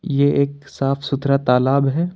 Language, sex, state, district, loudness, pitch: Hindi, male, Jharkhand, Ranchi, -18 LUFS, 140 Hz